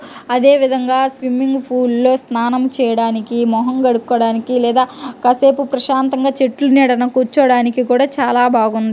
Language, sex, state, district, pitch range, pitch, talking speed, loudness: Telugu, male, Andhra Pradesh, Guntur, 245-265 Hz, 255 Hz, 115 wpm, -14 LUFS